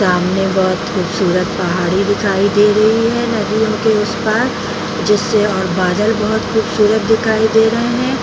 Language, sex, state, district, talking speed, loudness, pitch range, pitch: Hindi, female, Bihar, Jamui, 160 wpm, -14 LUFS, 190-220 Hz, 215 Hz